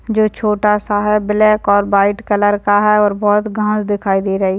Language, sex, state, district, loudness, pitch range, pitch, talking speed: Hindi, female, Bihar, Madhepura, -14 LUFS, 205-210 Hz, 205 Hz, 220 wpm